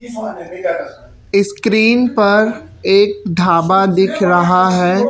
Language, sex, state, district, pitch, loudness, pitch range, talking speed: Hindi, male, Chhattisgarh, Raipur, 195 Hz, -13 LUFS, 180-215 Hz, 80 wpm